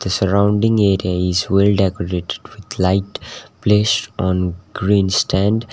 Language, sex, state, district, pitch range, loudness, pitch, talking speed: English, male, Sikkim, Gangtok, 95-105 Hz, -17 LUFS, 100 Hz, 125 wpm